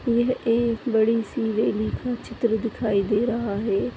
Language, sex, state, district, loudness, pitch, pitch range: Kumaoni, female, Uttarakhand, Tehri Garhwal, -24 LUFS, 230 Hz, 220-235 Hz